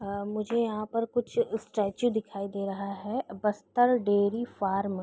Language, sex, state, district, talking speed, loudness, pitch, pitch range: Hindi, female, Bihar, East Champaran, 165 wpm, -29 LUFS, 210 Hz, 200-235 Hz